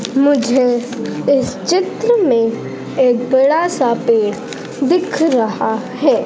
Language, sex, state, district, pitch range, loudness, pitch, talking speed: Hindi, female, Madhya Pradesh, Dhar, 240-290 Hz, -15 LUFS, 260 Hz, 105 wpm